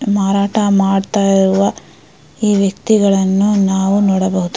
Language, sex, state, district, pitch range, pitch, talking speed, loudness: Kannada, female, Karnataka, Mysore, 190-205 Hz, 195 Hz, 90 wpm, -14 LUFS